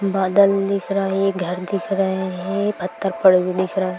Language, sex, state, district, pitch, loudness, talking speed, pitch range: Hindi, male, Maharashtra, Nagpur, 195 Hz, -20 LUFS, 210 wpm, 185-195 Hz